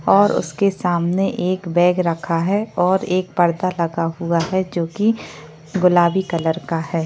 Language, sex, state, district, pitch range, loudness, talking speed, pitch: Hindi, female, Maharashtra, Chandrapur, 170-190 Hz, -19 LUFS, 160 wpm, 175 Hz